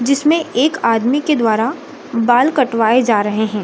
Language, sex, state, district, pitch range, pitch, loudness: Hindi, female, Bihar, Samastipur, 225-290 Hz, 245 Hz, -15 LUFS